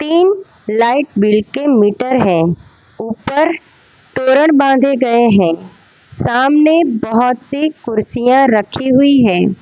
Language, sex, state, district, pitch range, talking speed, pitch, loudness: Hindi, female, Gujarat, Valsad, 215-280 Hz, 110 wpm, 250 Hz, -12 LUFS